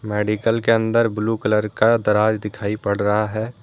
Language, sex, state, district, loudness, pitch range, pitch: Hindi, male, Jharkhand, Deoghar, -19 LUFS, 105-115 Hz, 105 Hz